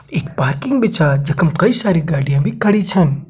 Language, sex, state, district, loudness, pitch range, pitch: Kumaoni, male, Uttarakhand, Tehri Garhwal, -15 LUFS, 145-200 Hz, 160 Hz